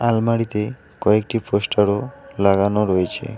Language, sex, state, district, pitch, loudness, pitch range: Bengali, male, West Bengal, Alipurduar, 105 Hz, -20 LUFS, 100-115 Hz